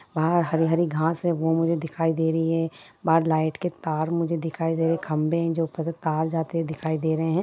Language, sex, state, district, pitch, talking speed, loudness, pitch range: Hindi, female, Bihar, Lakhisarai, 165 Hz, 265 wpm, -25 LUFS, 160-165 Hz